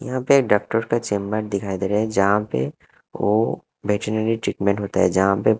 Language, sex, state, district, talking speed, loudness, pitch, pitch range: Hindi, male, Punjab, Kapurthala, 195 wpm, -21 LUFS, 105 Hz, 100-110 Hz